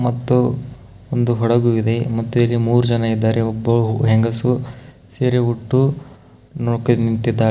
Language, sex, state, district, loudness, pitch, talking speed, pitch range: Kannada, male, Karnataka, Koppal, -18 LUFS, 120 Hz, 130 wpm, 115-125 Hz